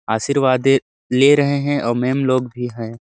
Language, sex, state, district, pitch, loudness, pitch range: Hindi, male, Chhattisgarh, Sarguja, 130 Hz, -17 LUFS, 120-140 Hz